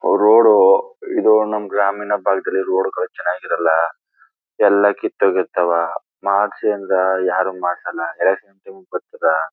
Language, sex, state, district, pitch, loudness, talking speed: Kannada, male, Karnataka, Chamarajanagar, 100 Hz, -17 LUFS, 100 wpm